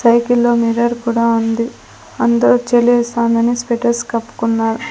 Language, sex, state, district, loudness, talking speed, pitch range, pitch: Telugu, female, Andhra Pradesh, Sri Satya Sai, -15 LUFS, 100 wpm, 230-240 Hz, 235 Hz